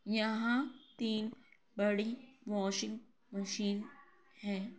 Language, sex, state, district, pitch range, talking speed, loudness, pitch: Hindi, female, Bihar, Kishanganj, 205-245 Hz, 75 wpm, -37 LUFS, 225 Hz